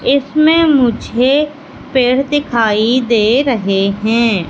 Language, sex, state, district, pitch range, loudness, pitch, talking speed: Hindi, female, Madhya Pradesh, Katni, 225-280 Hz, -13 LUFS, 250 Hz, 95 wpm